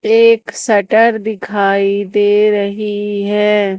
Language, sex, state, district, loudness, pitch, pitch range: Hindi, female, Madhya Pradesh, Umaria, -13 LUFS, 210 Hz, 200-220 Hz